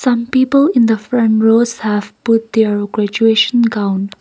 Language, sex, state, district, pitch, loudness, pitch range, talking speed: English, female, Nagaland, Kohima, 225 Hz, -13 LUFS, 210-240 Hz, 140 wpm